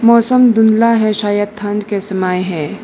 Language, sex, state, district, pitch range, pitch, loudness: Hindi, female, Arunachal Pradesh, Lower Dibang Valley, 195-230 Hz, 210 Hz, -13 LUFS